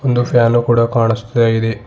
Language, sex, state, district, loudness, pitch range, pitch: Kannada, male, Karnataka, Bidar, -14 LUFS, 115-120 Hz, 115 Hz